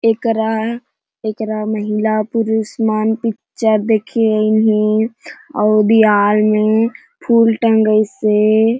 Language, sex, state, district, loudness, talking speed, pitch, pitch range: Chhattisgarhi, female, Chhattisgarh, Jashpur, -15 LUFS, 100 wpm, 220 Hz, 215-225 Hz